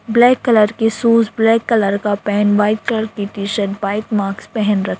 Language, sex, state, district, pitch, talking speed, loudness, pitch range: Hindi, female, Jharkhand, Sahebganj, 210 Hz, 215 wpm, -16 LUFS, 205-225 Hz